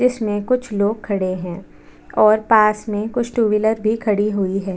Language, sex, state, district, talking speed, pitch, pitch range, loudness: Hindi, female, Chhattisgarh, Bastar, 200 wpm, 215 Hz, 205-220 Hz, -18 LUFS